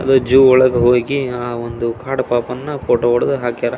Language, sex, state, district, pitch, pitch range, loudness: Kannada, male, Karnataka, Belgaum, 125 Hz, 120-135 Hz, -15 LUFS